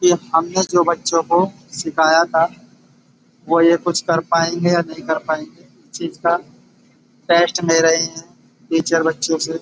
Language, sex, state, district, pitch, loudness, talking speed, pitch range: Hindi, male, Uttar Pradesh, Budaun, 165 Hz, -17 LUFS, 160 wpm, 165-170 Hz